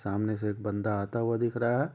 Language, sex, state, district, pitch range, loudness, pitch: Hindi, male, Bihar, Sitamarhi, 105-120 Hz, -30 LUFS, 110 Hz